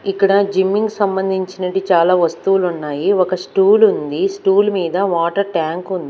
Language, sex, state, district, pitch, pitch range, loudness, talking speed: Telugu, female, Andhra Pradesh, Manyam, 190 Hz, 180-200 Hz, -16 LUFS, 135 wpm